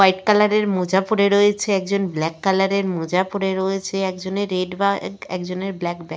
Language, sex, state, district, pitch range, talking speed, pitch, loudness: Bengali, female, West Bengal, Purulia, 185-200 Hz, 205 wpm, 195 Hz, -20 LUFS